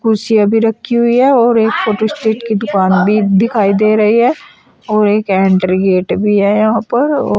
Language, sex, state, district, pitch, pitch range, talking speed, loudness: Hindi, female, Uttar Pradesh, Shamli, 215 Hz, 205-225 Hz, 210 wpm, -12 LUFS